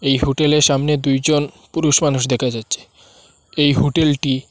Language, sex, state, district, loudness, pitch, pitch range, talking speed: Bengali, male, Assam, Hailakandi, -17 LUFS, 145 Hz, 135-150 Hz, 160 wpm